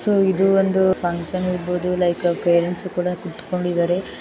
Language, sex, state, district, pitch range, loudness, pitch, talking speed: Kannada, female, Karnataka, Raichur, 175-190 Hz, -20 LUFS, 180 Hz, 130 wpm